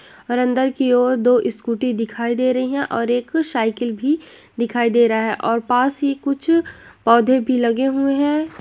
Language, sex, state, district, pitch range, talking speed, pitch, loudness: Hindi, female, Bihar, Gopalganj, 235-275 Hz, 190 wpm, 250 Hz, -18 LUFS